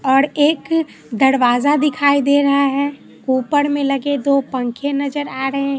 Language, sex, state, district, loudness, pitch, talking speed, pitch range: Hindi, female, Bihar, Katihar, -17 LUFS, 280 Hz, 155 wpm, 270-285 Hz